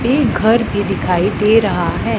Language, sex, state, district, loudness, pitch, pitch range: Hindi, female, Punjab, Pathankot, -15 LUFS, 220 Hz, 175-235 Hz